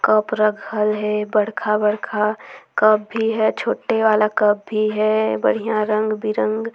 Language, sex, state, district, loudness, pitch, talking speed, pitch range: Surgujia, female, Chhattisgarh, Sarguja, -19 LUFS, 215 Hz, 140 wpm, 210-220 Hz